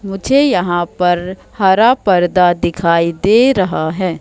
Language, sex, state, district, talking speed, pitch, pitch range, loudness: Hindi, female, Madhya Pradesh, Katni, 130 wpm, 185 Hz, 175-205 Hz, -13 LUFS